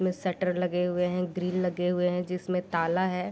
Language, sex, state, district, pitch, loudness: Hindi, female, Bihar, Sitamarhi, 180 Hz, -29 LUFS